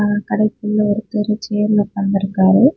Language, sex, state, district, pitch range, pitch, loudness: Tamil, female, Tamil Nadu, Kanyakumari, 205-215 Hz, 210 Hz, -17 LUFS